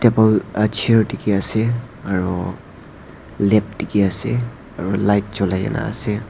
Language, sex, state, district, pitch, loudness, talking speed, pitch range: Nagamese, male, Nagaland, Dimapur, 105 Hz, -19 LUFS, 105 wpm, 100-110 Hz